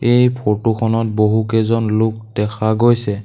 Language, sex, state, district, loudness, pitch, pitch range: Assamese, male, Assam, Sonitpur, -16 LUFS, 110 Hz, 110-115 Hz